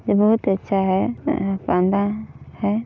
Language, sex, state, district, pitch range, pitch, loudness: Hindi, female, Chhattisgarh, Balrampur, 195-210 Hz, 200 Hz, -20 LUFS